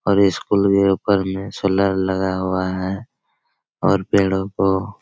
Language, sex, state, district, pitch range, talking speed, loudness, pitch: Hindi, male, Bihar, Araria, 95-100 Hz, 165 wpm, -19 LUFS, 95 Hz